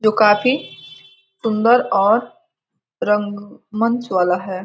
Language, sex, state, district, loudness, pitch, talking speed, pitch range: Hindi, female, Bihar, Gopalganj, -17 LUFS, 215 Hz, 90 wpm, 205-240 Hz